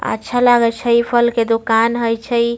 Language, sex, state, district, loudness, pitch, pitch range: Maithili, female, Bihar, Samastipur, -15 LUFS, 235 Hz, 230-240 Hz